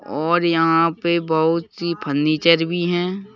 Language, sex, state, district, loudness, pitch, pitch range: Hindi, male, Madhya Pradesh, Bhopal, -19 LUFS, 170 Hz, 160-175 Hz